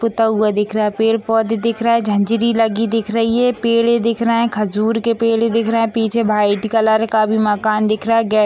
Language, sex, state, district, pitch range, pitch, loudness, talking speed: Hindi, female, Bihar, Gopalganj, 215-230 Hz, 225 Hz, -16 LUFS, 260 wpm